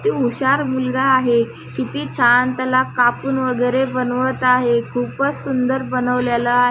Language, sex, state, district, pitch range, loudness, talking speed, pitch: Marathi, female, Maharashtra, Chandrapur, 245-260 Hz, -18 LUFS, 135 wpm, 255 Hz